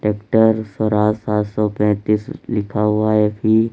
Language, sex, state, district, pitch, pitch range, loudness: Hindi, male, Uttar Pradesh, Lalitpur, 105 Hz, 105-110 Hz, -18 LUFS